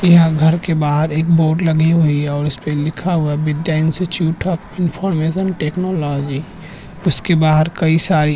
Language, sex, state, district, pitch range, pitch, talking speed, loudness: Hindi, male, Uttarakhand, Tehri Garhwal, 150-170 Hz, 160 Hz, 165 wpm, -16 LUFS